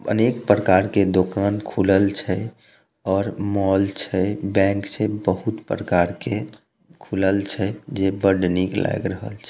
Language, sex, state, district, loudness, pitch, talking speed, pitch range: Maithili, male, Bihar, Samastipur, -21 LUFS, 100 Hz, 140 wpm, 95-105 Hz